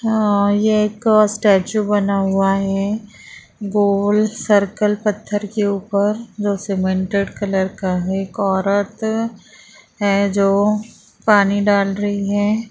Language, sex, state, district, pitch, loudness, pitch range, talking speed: Hindi, female, Bihar, Bhagalpur, 205 Hz, -18 LUFS, 200-210 Hz, 120 wpm